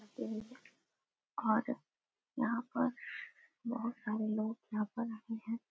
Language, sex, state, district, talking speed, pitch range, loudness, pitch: Hindi, female, Bihar, Darbhanga, 105 wpm, 220-250 Hz, -39 LUFS, 235 Hz